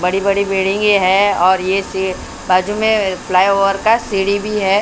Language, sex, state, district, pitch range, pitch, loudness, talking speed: Hindi, female, Maharashtra, Mumbai Suburban, 190-205 Hz, 195 Hz, -15 LUFS, 150 wpm